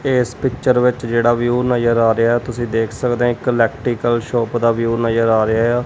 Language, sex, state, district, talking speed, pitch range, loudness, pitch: Punjabi, male, Punjab, Kapurthala, 235 wpm, 115-125 Hz, -17 LUFS, 120 Hz